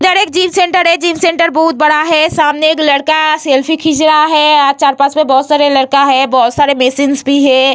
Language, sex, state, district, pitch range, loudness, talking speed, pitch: Hindi, female, Bihar, Vaishali, 280-320 Hz, -10 LUFS, 210 wpm, 300 Hz